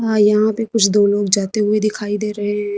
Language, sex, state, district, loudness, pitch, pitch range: Hindi, female, Uttar Pradesh, Lucknow, -16 LUFS, 210 Hz, 205-215 Hz